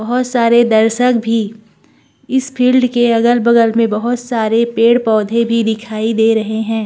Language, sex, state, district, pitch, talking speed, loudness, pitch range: Hindi, female, Uttarakhand, Tehri Garhwal, 230 Hz, 150 wpm, -13 LUFS, 220-240 Hz